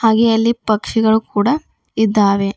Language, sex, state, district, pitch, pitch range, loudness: Kannada, female, Karnataka, Bidar, 220 Hz, 210-230 Hz, -15 LUFS